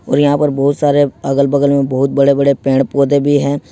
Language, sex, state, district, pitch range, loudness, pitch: Hindi, male, Jharkhand, Ranchi, 140-145 Hz, -13 LUFS, 140 Hz